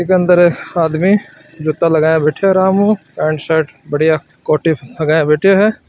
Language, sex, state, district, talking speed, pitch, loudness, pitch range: Marwari, male, Rajasthan, Nagaur, 175 wpm, 160 Hz, -14 LUFS, 155-190 Hz